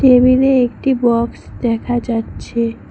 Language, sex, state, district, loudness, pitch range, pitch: Bengali, female, West Bengal, Cooch Behar, -16 LUFS, 235-255 Hz, 240 Hz